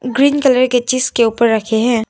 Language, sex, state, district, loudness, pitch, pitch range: Hindi, female, Arunachal Pradesh, Papum Pare, -14 LUFS, 245 Hz, 230-255 Hz